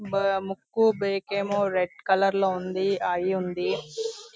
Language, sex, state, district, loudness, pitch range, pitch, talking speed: Telugu, female, Andhra Pradesh, Visakhapatnam, -26 LUFS, 190-200 Hz, 195 Hz, 125 wpm